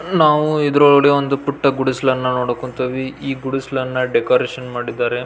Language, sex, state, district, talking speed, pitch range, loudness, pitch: Kannada, male, Karnataka, Belgaum, 125 wpm, 130-145 Hz, -17 LUFS, 135 Hz